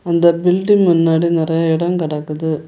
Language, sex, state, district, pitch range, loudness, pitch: Tamil, female, Tamil Nadu, Kanyakumari, 160-175 Hz, -15 LUFS, 165 Hz